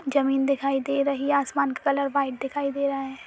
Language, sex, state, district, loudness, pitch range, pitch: Hindi, female, Uttar Pradesh, Budaun, -25 LUFS, 270-280 Hz, 275 Hz